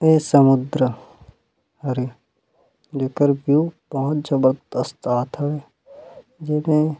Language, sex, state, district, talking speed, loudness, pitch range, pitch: Chhattisgarhi, male, Chhattisgarh, Rajnandgaon, 85 wpm, -20 LUFS, 130-155 Hz, 140 Hz